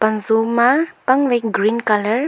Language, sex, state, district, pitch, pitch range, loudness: Wancho, female, Arunachal Pradesh, Longding, 225 Hz, 215-255 Hz, -17 LUFS